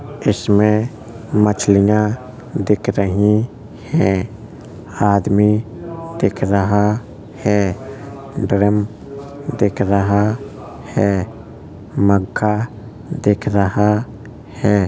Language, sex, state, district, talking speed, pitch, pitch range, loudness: Hindi, male, Uttar Pradesh, Jalaun, 70 wpm, 105 Hz, 100-115 Hz, -17 LUFS